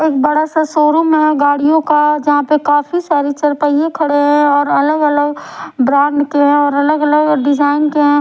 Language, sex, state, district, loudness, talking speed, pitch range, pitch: Hindi, female, Odisha, Sambalpur, -12 LUFS, 195 wpm, 290-305 Hz, 295 Hz